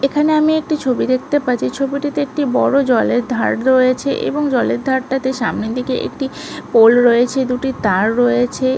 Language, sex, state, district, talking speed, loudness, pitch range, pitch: Bengali, female, West Bengal, Malda, 155 wpm, -16 LUFS, 245-275 Hz, 260 Hz